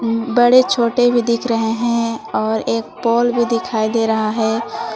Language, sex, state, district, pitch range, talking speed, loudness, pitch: Hindi, female, Jharkhand, Palamu, 220-240 Hz, 170 wpm, -16 LUFS, 230 Hz